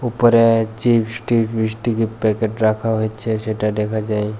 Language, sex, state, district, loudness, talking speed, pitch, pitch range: Bengali, male, Tripura, West Tripura, -18 LUFS, 150 wpm, 110 Hz, 110-115 Hz